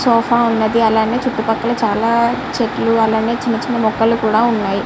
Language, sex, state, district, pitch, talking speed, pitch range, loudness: Telugu, male, Andhra Pradesh, Srikakulam, 230 Hz, 150 wpm, 220-235 Hz, -15 LUFS